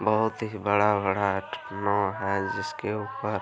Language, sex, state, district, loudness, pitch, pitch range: Hindi, male, Bihar, Araria, -27 LUFS, 100 Hz, 95-105 Hz